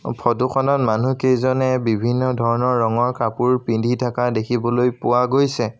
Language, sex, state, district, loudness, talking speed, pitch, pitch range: Assamese, male, Assam, Sonitpur, -19 LUFS, 135 wpm, 125 Hz, 120-130 Hz